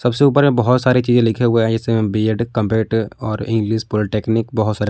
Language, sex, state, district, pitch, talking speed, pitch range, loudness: Hindi, male, Jharkhand, Palamu, 115 Hz, 210 wpm, 110-120 Hz, -17 LUFS